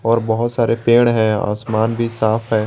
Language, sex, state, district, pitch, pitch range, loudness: Hindi, male, Jharkhand, Garhwa, 115 Hz, 110-115 Hz, -17 LUFS